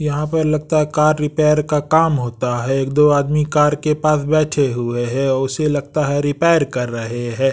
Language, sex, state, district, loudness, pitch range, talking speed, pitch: Hindi, male, Bihar, West Champaran, -17 LUFS, 135-155 Hz, 215 wpm, 150 Hz